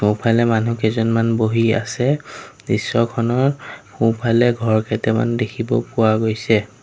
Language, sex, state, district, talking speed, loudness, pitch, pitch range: Assamese, male, Assam, Sonitpur, 105 wpm, -18 LUFS, 115 Hz, 110-120 Hz